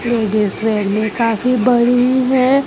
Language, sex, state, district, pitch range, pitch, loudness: Hindi, female, Gujarat, Gandhinagar, 215-250 Hz, 235 Hz, -15 LUFS